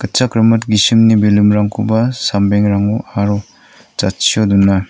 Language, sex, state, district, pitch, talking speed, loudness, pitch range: Garo, male, Meghalaya, North Garo Hills, 105 Hz, 85 wpm, -13 LUFS, 100-115 Hz